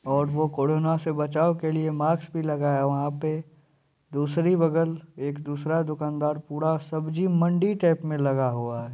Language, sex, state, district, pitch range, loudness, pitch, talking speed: Hindi, male, Bihar, Purnia, 145-160 Hz, -26 LUFS, 155 Hz, 180 wpm